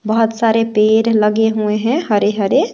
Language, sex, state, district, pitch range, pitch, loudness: Hindi, female, Bihar, West Champaran, 210-225 Hz, 220 Hz, -14 LUFS